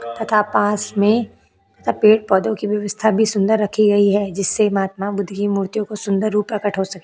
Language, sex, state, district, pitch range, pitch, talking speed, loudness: Hindi, female, Chhattisgarh, Korba, 200-215 Hz, 205 Hz, 215 wpm, -18 LUFS